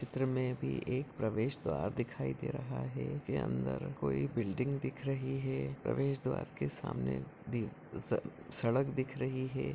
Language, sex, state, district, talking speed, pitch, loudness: Hindi, male, Maharashtra, Dhule, 160 wpm, 120 Hz, -37 LUFS